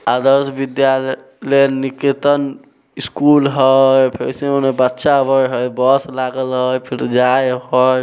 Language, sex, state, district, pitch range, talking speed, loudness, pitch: Maithili, male, Bihar, Samastipur, 130-140 Hz, 110 wpm, -15 LUFS, 135 Hz